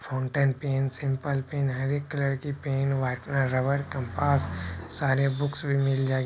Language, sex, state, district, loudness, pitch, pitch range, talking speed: Hindi, male, Bihar, Purnia, -28 LUFS, 135 Hz, 130-140 Hz, 155 wpm